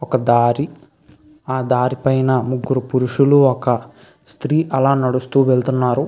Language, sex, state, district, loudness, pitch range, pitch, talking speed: Telugu, male, Andhra Pradesh, Visakhapatnam, -17 LUFS, 125-140 Hz, 130 Hz, 120 wpm